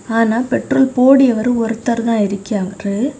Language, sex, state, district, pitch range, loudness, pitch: Tamil, female, Tamil Nadu, Kanyakumari, 215-255 Hz, -15 LUFS, 230 Hz